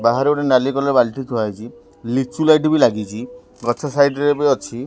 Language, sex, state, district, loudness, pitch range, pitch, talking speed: Odia, male, Odisha, Khordha, -17 LUFS, 115-145 Hz, 130 Hz, 210 wpm